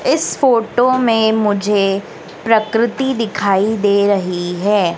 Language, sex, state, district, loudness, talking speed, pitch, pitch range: Hindi, female, Madhya Pradesh, Dhar, -15 LUFS, 110 wpm, 210 Hz, 200-230 Hz